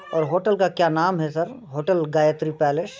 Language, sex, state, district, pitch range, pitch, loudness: Hindi, female, Bihar, Muzaffarpur, 155-185 Hz, 160 Hz, -22 LUFS